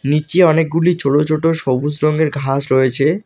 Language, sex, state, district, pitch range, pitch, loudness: Bengali, male, West Bengal, Alipurduar, 140-160 Hz, 150 Hz, -15 LUFS